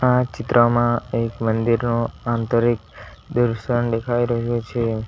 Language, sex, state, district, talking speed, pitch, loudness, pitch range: Gujarati, male, Gujarat, Valsad, 105 wpm, 115 Hz, -21 LUFS, 115-120 Hz